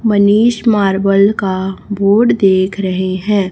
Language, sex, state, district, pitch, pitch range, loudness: Hindi, female, Chhattisgarh, Raipur, 200 Hz, 190-210 Hz, -13 LUFS